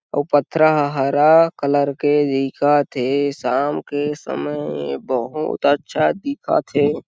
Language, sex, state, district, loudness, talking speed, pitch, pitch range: Chhattisgarhi, male, Chhattisgarh, Sarguja, -19 LUFS, 135 wpm, 145 Hz, 135-150 Hz